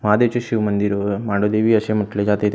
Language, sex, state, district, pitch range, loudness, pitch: Marathi, male, Maharashtra, Gondia, 100-110 Hz, -19 LUFS, 105 Hz